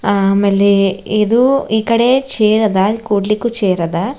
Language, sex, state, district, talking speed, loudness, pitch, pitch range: Kannada, female, Karnataka, Bidar, 85 wpm, -13 LUFS, 210 Hz, 200-230 Hz